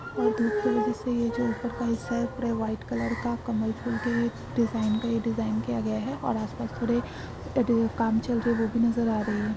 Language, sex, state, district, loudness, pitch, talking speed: Hindi, female, Maharashtra, Aurangabad, -28 LUFS, 215 Hz, 155 wpm